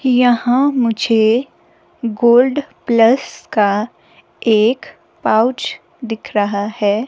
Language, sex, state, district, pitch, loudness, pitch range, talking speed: Hindi, female, Himachal Pradesh, Shimla, 235 Hz, -15 LUFS, 220-260 Hz, 85 wpm